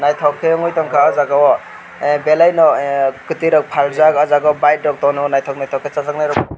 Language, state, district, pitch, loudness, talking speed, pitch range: Kokborok, Tripura, West Tripura, 145 Hz, -14 LUFS, 220 wpm, 140-155 Hz